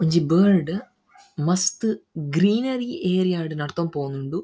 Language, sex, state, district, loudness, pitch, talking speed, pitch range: Tulu, male, Karnataka, Dakshina Kannada, -23 LUFS, 180 Hz, 110 wpm, 160-200 Hz